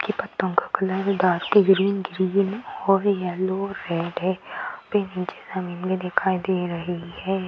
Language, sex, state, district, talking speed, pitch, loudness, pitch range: Hindi, female, Bihar, Madhepura, 135 wpm, 185 Hz, -24 LUFS, 180-195 Hz